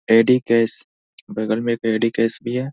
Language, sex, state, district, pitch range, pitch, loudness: Hindi, male, Bihar, Saharsa, 115-120 Hz, 115 Hz, -19 LUFS